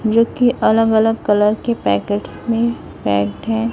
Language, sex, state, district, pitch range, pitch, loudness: Hindi, female, Chhattisgarh, Raipur, 205-230 Hz, 225 Hz, -17 LUFS